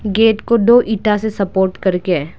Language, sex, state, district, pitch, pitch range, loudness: Hindi, female, Arunachal Pradesh, Lower Dibang Valley, 210 Hz, 190-225 Hz, -15 LUFS